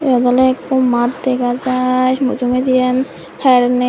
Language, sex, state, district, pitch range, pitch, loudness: Chakma, female, Tripura, Dhalai, 250-260 Hz, 255 Hz, -15 LUFS